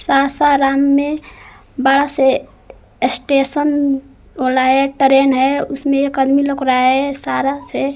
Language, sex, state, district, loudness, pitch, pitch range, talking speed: Hindi, female, Bihar, Kaimur, -15 LUFS, 275 Hz, 270-280 Hz, 115 wpm